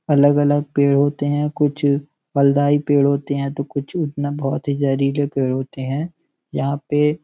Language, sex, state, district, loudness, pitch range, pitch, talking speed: Hindi, male, Uttar Pradesh, Gorakhpur, -19 LUFS, 140-145 Hz, 145 Hz, 180 wpm